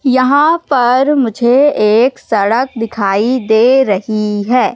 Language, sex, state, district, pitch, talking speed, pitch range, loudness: Hindi, female, Madhya Pradesh, Katni, 245 Hz, 115 wpm, 215-260 Hz, -12 LUFS